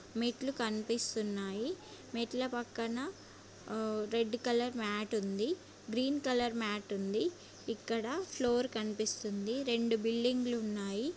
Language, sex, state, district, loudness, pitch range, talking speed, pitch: Telugu, female, Andhra Pradesh, Guntur, -36 LUFS, 215-245 Hz, 90 wpm, 230 Hz